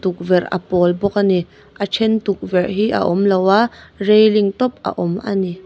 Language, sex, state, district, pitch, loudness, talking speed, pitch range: Mizo, female, Mizoram, Aizawl, 195 Hz, -17 LUFS, 190 wpm, 185-210 Hz